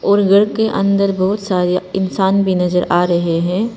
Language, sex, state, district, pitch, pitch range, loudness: Hindi, female, Arunachal Pradesh, Papum Pare, 190 Hz, 180-200 Hz, -15 LUFS